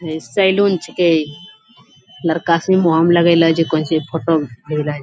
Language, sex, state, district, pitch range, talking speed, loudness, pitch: Angika, female, Bihar, Bhagalpur, 155-175 Hz, 120 wpm, -16 LUFS, 165 Hz